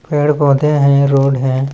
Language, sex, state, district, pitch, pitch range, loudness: Hindi, male, Chhattisgarh, Balrampur, 140 Hz, 135-145 Hz, -13 LUFS